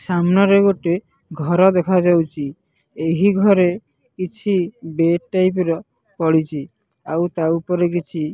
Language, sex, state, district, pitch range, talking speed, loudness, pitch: Odia, male, Odisha, Nuapada, 165-190 Hz, 110 wpm, -18 LUFS, 175 Hz